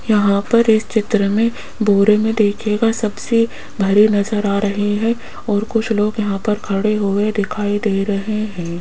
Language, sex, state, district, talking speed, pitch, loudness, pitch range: Hindi, female, Rajasthan, Jaipur, 170 wpm, 210 Hz, -17 LUFS, 205-220 Hz